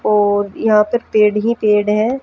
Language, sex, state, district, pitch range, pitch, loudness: Hindi, female, Haryana, Jhajjar, 210-225 Hz, 210 Hz, -15 LUFS